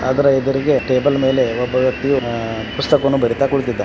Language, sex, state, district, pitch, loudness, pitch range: Kannada, male, Karnataka, Belgaum, 130 Hz, -17 LUFS, 125-140 Hz